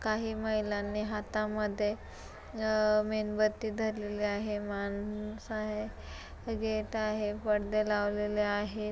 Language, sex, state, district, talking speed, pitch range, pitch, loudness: Marathi, female, Maharashtra, Chandrapur, 95 wpm, 210-215 Hz, 215 Hz, -33 LUFS